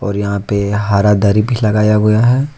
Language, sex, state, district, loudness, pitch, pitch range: Hindi, male, Jharkhand, Ranchi, -13 LUFS, 105 Hz, 100-105 Hz